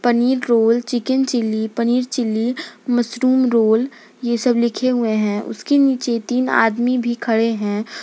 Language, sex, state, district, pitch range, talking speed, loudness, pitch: Hindi, female, Jharkhand, Garhwa, 225-250 Hz, 150 wpm, -18 LUFS, 240 Hz